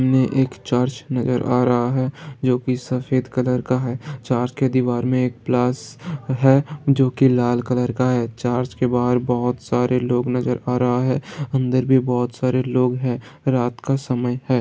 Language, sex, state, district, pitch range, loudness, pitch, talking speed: Hindi, male, Bihar, Saran, 125-130 Hz, -20 LUFS, 125 Hz, 200 wpm